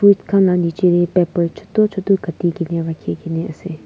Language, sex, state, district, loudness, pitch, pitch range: Nagamese, female, Nagaland, Kohima, -18 LUFS, 175 Hz, 170-195 Hz